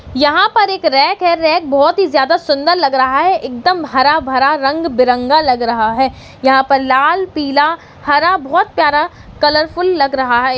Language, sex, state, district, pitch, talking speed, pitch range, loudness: Hindi, female, Uttarakhand, Uttarkashi, 295 Hz, 180 wpm, 265-340 Hz, -13 LUFS